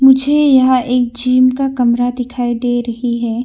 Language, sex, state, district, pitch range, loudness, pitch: Hindi, female, Arunachal Pradesh, Longding, 240-260 Hz, -14 LUFS, 245 Hz